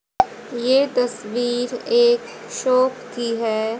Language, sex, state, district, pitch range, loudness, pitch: Hindi, female, Haryana, Rohtak, 235-260 Hz, -20 LUFS, 245 Hz